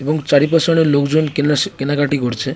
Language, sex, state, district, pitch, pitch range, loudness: Bengali, female, West Bengal, North 24 Parganas, 145 Hz, 140-155 Hz, -15 LUFS